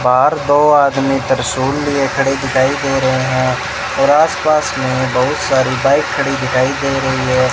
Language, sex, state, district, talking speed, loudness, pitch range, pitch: Hindi, male, Rajasthan, Bikaner, 175 wpm, -14 LUFS, 130-145 Hz, 135 Hz